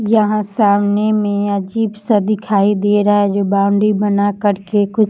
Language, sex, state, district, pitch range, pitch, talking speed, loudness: Hindi, female, Jharkhand, Jamtara, 200-215 Hz, 205 Hz, 175 wpm, -15 LUFS